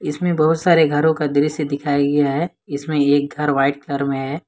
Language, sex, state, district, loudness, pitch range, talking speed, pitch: Hindi, male, Jharkhand, Ranchi, -18 LUFS, 140-155 Hz, 215 wpm, 145 Hz